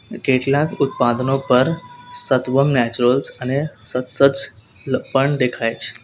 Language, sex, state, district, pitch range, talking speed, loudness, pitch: Gujarati, male, Gujarat, Valsad, 125-140 Hz, 90 wpm, -18 LUFS, 130 Hz